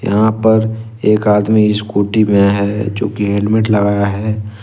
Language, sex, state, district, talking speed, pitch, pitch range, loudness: Hindi, male, Jharkhand, Ranchi, 155 wpm, 105 Hz, 100-110 Hz, -14 LUFS